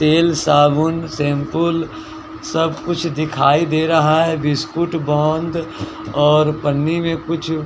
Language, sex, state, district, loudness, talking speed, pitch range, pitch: Hindi, male, Bihar, West Champaran, -17 LUFS, 125 wpm, 150-165 Hz, 160 Hz